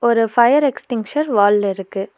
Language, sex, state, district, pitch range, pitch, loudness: Tamil, female, Tamil Nadu, Nilgiris, 200-245 Hz, 225 Hz, -16 LUFS